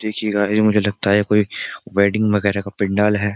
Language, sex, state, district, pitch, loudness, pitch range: Hindi, male, Uttar Pradesh, Jyotiba Phule Nagar, 105 Hz, -18 LUFS, 100-105 Hz